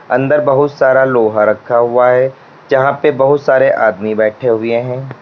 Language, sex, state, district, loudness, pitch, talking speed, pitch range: Hindi, male, Uttar Pradesh, Lalitpur, -12 LUFS, 125 Hz, 175 wpm, 115-135 Hz